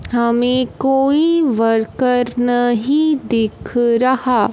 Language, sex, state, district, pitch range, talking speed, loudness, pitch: Hindi, female, Punjab, Fazilka, 235-270 Hz, 80 wpm, -16 LUFS, 245 Hz